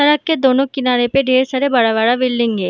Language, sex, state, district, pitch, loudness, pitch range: Hindi, female, Jharkhand, Sahebganj, 255 Hz, -15 LUFS, 240-275 Hz